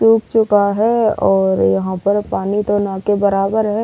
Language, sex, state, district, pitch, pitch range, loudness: Hindi, female, Delhi, New Delhi, 205 Hz, 195-220 Hz, -15 LUFS